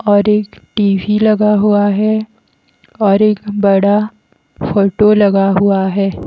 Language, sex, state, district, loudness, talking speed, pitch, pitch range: Hindi, female, Haryana, Jhajjar, -13 LUFS, 135 wpm, 205 Hz, 200-210 Hz